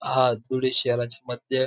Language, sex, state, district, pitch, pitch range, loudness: Marathi, male, Maharashtra, Dhule, 125 Hz, 120-130 Hz, -25 LUFS